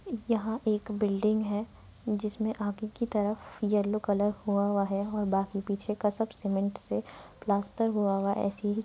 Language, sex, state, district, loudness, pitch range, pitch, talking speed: Hindi, female, Uttar Pradesh, Muzaffarnagar, -31 LUFS, 200-215 Hz, 210 Hz, 175 wpm